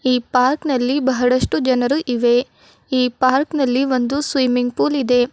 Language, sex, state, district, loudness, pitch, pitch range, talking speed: Kannada, female, Karnataka, Bidar, -18 LUFS, 255 Hz, 245-275 Hz, 145 wpm